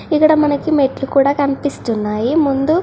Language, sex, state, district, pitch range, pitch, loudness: Telugu, female, Andhra Pradesh, Krishna, 270-305 Hz, 280 Hz, -15 LUFS